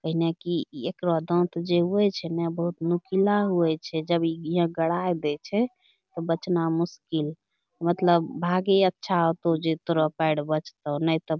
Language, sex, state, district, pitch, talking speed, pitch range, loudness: Angika, female, Bihar, Bhagalpur, 170 Hz, 175 wpm, 160-175 Hz, -26 LUFS